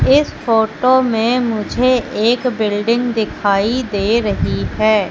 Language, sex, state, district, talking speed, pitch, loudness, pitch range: Hindi, female, Madhya Pradesh, Katni, 115 wpm, 230 Hz, -16 LUFS, 215-250 Hz